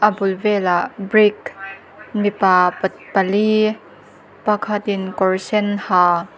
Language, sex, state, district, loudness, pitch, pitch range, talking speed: Mizo, female, Mizoram, Aizawl, -18 LUFS, 200 Hz, 190-210 Hz, 105 wpm